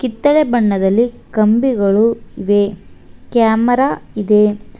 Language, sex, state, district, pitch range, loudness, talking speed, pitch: Kannada, female, Karnataka, Bangalore, 205-245 Hz, -14 LUFS, 75 wpm, 225 Hz